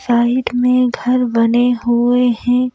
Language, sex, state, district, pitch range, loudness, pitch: Hindi, female, Madhya Pradesh, Bhopal, 240-250 Hz, -15 LUFS, 245 Hz